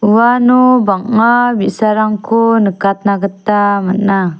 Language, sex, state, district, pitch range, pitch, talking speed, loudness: Garo, female, Meghalaya, South Garo Hills, 200-230 Hz, 210 Hz, 80 wpm, -12 LUFS